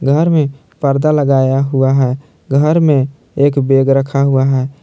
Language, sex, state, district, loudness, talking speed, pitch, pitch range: Hindi, male, Jharkhand, Palamu, -13 LUFS, 160 wpm, 140 Hz, 135-145 Hz